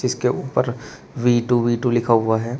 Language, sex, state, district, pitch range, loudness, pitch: Hindi, male, Uttar Pradesh, Shamli, 115-120 Hz, -20 LUFS, 120 Hz